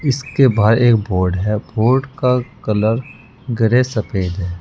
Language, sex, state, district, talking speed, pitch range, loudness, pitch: Hindi, male, Uttar Pradesh, Saharanpur, 145 wpm, 105-125 Hz, -17 LUFS, 115 Hz